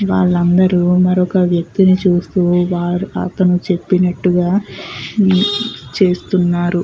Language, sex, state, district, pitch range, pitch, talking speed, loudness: Telugu, female, Andhra Pradesh, Guntur, 175-185 Hz, 180 Hz, 70 wpm, -14 LUFS